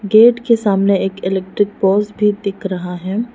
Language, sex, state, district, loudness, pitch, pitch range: Hindi, female, Arunachal Pradesh, Lower Dibang Valley, -16 LUFS, 200 Hz, 190-215 Hz